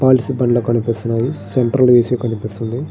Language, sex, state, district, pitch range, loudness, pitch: Telugu, male, Andhra Pradesh, Srikakulam, 115-130 Hz, -16 LUFS, 120 Hz